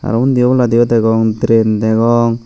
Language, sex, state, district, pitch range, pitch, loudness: Chakma, male, Tripura, Unakoti, 110-120 Hz, 115 Hz, -12 LUFS